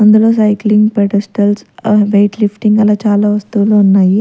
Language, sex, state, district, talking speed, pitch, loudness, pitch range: Telugu, female, Andhra Pradesh, Manyam, 140 wpm, 210 Hz, -11 LUFS, 205-215 Hz